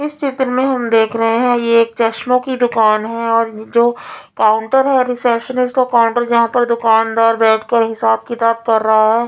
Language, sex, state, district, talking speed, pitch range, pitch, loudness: Hindi, female, Punjab, Fazilka, 195 wpm, 225-245 Hz, 230 Hz, -14 LUFS